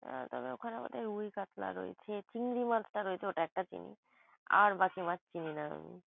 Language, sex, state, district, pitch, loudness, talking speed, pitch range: Bengali, female, West Bengal, Kolkata, 195 Hz, -37 LUFS, 175 wpm, 175-210 Hz